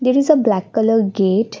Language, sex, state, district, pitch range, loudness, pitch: English, female, Assam, Kamrup Metropolitan, 200-250 Hz, -16 LUFS, 220 Hz